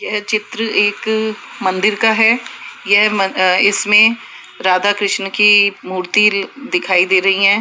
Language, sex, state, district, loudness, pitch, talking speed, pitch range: Hindi, female, Rajasthan, Jaipur, -14 LUFS, 205 Hz, 135 wpm, 195-215 Hz